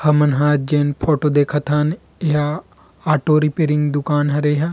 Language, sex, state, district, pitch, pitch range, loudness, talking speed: Chhattisgarhi, male, Chhattisgarh, Rajnandgaon, 150 Hz, 145-155 Hz, -18 LUFS, 150 wpm